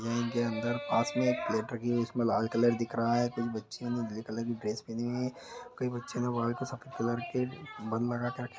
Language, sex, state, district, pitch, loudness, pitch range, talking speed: Maithili, male, Bihar, Madhepura, 120 Hz, -33 LUFS, 115-120 Hz, 270 wpm